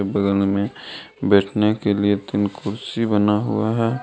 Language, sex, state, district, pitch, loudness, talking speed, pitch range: Hindi, male, Jharkhand, Deoghar, 100 Hz, -20 LUFS, 150 wpm, 100-110 Hz